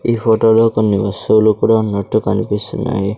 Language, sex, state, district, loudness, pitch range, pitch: Telugu, male, Andhra Pradesh, Sri Satya Sai, -14 LUFS, 105-115 Hz, 110 Hz